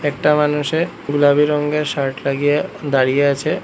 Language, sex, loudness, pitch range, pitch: Bengali, male, -17 LUFS, 140-150 Hz, 145 Hz